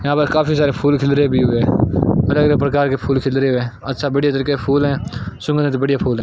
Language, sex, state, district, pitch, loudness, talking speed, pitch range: Hindi, male, Rajasthan, Bikaner, 140 Hz, -17 LUFS, 270 wpm, 130-145 Hz